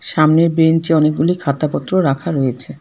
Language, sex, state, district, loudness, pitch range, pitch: Bengali, female, West Bengal, Alipurduar, -15 LUFS, 145-165 Hz, 160 Hz